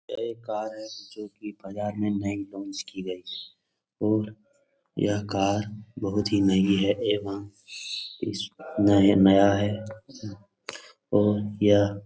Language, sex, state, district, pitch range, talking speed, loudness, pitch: Hindi, male, Uttar Pradesh, Etah, 100-105 Hz, 135 wpm, -25 LUFS, 100 Hz